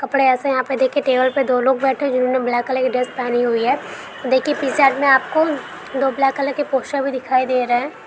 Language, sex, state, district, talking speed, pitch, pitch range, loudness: Hindi, male, Uttar Pradesh, Ghazipur, 245 wpm, 265 Hz, 255-275 Hz, -18 LUFS